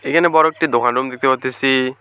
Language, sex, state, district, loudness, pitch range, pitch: Bengali, male, West Bengal, Alipurduar, -16 LUFS, 130-160 Hz, 130 Hz